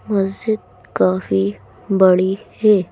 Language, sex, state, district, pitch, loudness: Hindi, female, Madhya Pradesh, Bhopal, 190 Hz, -18 LUFS